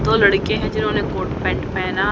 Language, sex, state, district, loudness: Hindi, female, Haryana, Rohtak, -19 LUFS